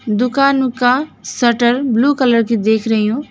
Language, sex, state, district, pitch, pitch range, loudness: Hindi, female, West Bengal, Alipurduar, 240 Hz, 230-265 Hz, -14 LUFS